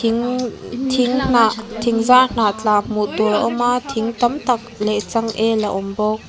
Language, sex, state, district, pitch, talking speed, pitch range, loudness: Mizo, female, Mizoram, Aizawl, 225 Hz, 190 wpm, 215-245 Hz, -18 LUFS